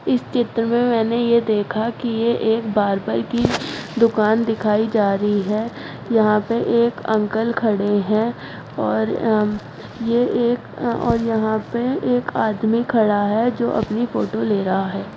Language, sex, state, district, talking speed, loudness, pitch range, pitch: Hindi, female, Delhi, New Delhi, 150 wpm, -20 LUFS, 210-235 Hz, 220 Hz